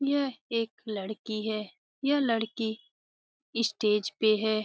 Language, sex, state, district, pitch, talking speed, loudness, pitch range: Hindi, female, Bihar, Jamui, 220 Hz, 115 wpm, -30 LUFS, 215-235 Hz